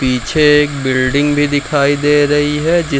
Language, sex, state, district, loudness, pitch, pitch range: Hindi, male, Bihar, Jamui, -13 LUFS, 145 Hz, 140-150 Hz